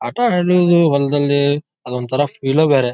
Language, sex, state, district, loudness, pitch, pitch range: Kannada, male, Karnataka, Bijapur, -16 LUFS, 145 Hz, 140-170 Hz